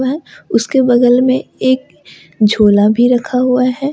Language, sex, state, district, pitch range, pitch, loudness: Hindi, female, Jharkhand, Ranchi, 220-260 Hz, 250 Hz, -12 LUFS